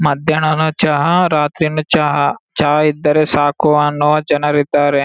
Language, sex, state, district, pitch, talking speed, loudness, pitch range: Kannada, male, Karnataka, Gulbarga, 150 Hz, 105 wpm, -14 LUFS, 145-155 Hz